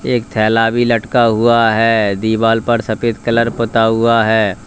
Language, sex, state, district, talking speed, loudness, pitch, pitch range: Hindi, male, Uttar Pradesh, Lalitpur, 165 wpm, -13 LUFS, 115 Hz, 110-115 Hz